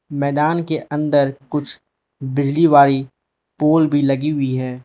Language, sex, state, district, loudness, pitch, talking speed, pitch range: Hindi, male, Manipur, Imphal West, -17 LUFS, 145 Hz, 135 wpm, 135-150 Hz